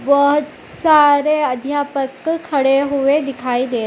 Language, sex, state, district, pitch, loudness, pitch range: Hindi, female, Uttar Pradesh, Etah, 280 Hz, -16 LUFS, 270-295 Hz